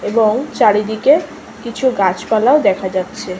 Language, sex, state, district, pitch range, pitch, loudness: Bengali, female, West Bengal, Malda, 195-260 Hz, 220 Hz, -15 LUFS